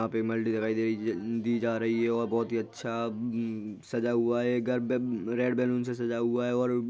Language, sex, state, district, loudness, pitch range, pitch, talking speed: Hindi, male, Bihar, Jahanabad, -30 LUFS, 115-120 Hz, 115 Hz, 245 wpm